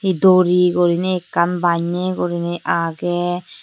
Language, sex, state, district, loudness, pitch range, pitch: Chakma, female, Tripura, Unakoti, -18 LUFS, 175-180 Hz, 175 Hz